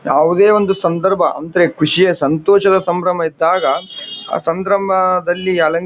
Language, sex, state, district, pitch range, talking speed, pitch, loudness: Kannada, male, Karnataka, Bijapur, 165-190 Hz, 125 wpm, 180 Hz, -14 LUFS